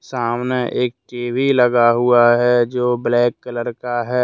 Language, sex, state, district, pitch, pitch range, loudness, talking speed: Hindi, male, Jharkhand, Deoghar, 120 Hz, 120-125 Hz, -17 LUFS, 155 wpm